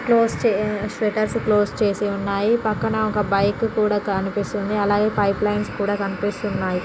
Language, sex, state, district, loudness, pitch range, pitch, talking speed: Telugu, female, Andhra Pradesh, Srikakulam, -21 LUFS, 200-215 Hz, 205 Hz, 160 wpm